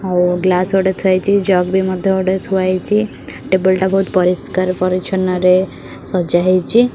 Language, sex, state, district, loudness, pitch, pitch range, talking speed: Odia, female, Odisha, Khordha, -15 LUFS, 185 Hz, 185-190 Hz, 165 wpm